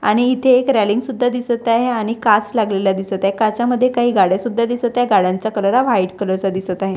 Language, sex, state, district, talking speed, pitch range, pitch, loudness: Marathi, female, Maharashtra, Washim, 225 wpm, 195-245 Hz, 220 Hz, -16 LUFS